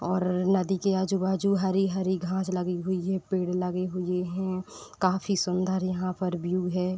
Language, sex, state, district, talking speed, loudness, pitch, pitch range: Hindi, female, Uttar Pradesh, Deoria, 165 wpm, -28 LUFS, 185 Hz, 180-190 Hz